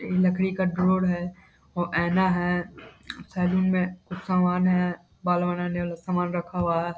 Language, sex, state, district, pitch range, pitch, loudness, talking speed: Hindi, male, Bihar, Saharsa, 175-185 Hz, 180 Hz, -25 LUFS, 170 wpm